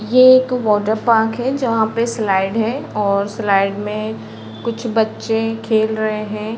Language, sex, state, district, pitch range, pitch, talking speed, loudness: Hindi, female, Uttar Pradesh, Deoria, 210-230 Hz, 220 Hz, 155 wpm, -17 LUFS